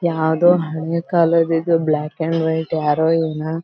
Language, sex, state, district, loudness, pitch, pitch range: Kannada, female, Karnataka, Belgaum, -18 LUFS, 160 Hz, 160-165 Hz